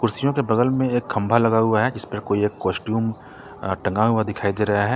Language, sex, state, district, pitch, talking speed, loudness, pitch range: Hindi, male, Jharkhand, Ranchi, 110 Hz, 220 wpm, -21 LUFS, 105-120 Hz